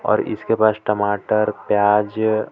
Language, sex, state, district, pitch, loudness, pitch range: Hindi, male, Jharkhand, Palamu, 105 Hz, -19 LUFS, 105-110 Hz